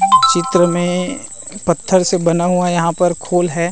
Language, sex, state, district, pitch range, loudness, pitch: Chhattisgarhi, male, Chhattisgarh, Rajnandgaon, 170-185 Hz, -15 LUFS, 175 Hz